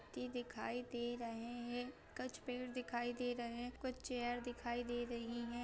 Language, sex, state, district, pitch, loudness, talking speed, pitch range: Hindi, female, Jharkhand, Sahebganj, 240 Hz, -45 LUFS, 180 wpm, 240-245 Hz